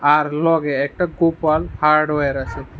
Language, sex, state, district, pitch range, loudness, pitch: Bengali, male, Tripura, West Tripura, 140-160 Hz, -18 LUFS, 150 Hz